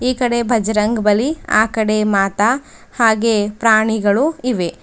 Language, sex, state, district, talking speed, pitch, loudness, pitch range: Kannada, female, Karnataka, Bidar, 125 wpm, 220 Hz, -16 LUFS, 210-235 Hz